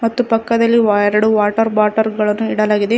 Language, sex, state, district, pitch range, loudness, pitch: Kannada, female, Karnataka, Koppal, 210-230 Hz, -15 LUFS, 220 Hz